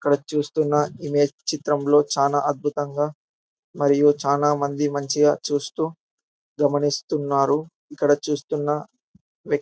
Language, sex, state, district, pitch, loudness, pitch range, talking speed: Telugu, male, Telangana, Karimnagar, 145 Hz, -22 LUFS, 145-150 Hz, 85 wpm